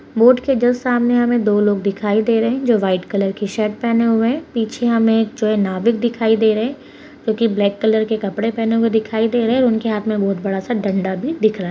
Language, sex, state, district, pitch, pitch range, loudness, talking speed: Hindi, female, Bihar, Darbhanga, 225 Hz, 210-235 Hz, -17 LUFS, 265 wpm